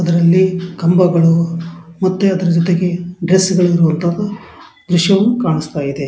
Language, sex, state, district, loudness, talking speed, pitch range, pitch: Kannada, male, Karnataka, Dharwad, -14 LUFS, 80 wpm, 170-185 Hz, 175 Hz